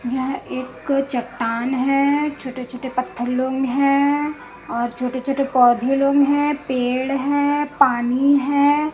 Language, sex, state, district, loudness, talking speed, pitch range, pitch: Hindi, female, Chhattisgarh, Raipur, -20 LUFS, 115 wpm, 255-280 Hz, 270 Hz